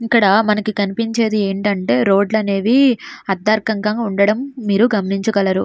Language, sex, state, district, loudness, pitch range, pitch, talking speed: Telugu, female, Andhra Pradesh, Srikakulam, -16 LUFS, 200-225 Hz, 210 Hz, 105 wpm